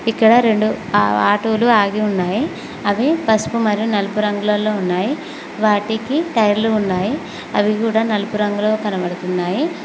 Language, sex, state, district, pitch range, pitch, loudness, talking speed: Telugu, female, Telangana, Mahabubabad, 205-225 Hz, 215 Hz, -17 LUFS, 120 wpm